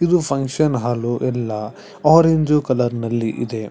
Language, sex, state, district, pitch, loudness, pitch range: Kannada, male, Karnataka, Chamarajanagar, 130 Hz, -18 LUFS, 120-155 Hz